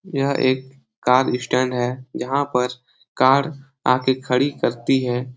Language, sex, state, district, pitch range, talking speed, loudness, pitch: Hindi, male, Bihar, Jahanabad, 125-135 Hz, 155 wpm, -20 LUFS, 130 Hz